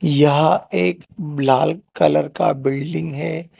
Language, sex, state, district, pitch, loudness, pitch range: Hindi, male, Telangana, Hyderabad, 150 Hz, -19 LUFS, 135-165 Hz